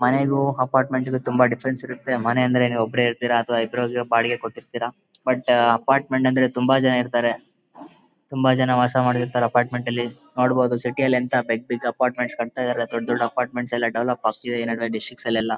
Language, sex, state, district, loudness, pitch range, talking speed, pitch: Kannada, male, Karnataka, Bellary, -22 LUFS, 120-130 Hz, 185 wpm, 125 Hz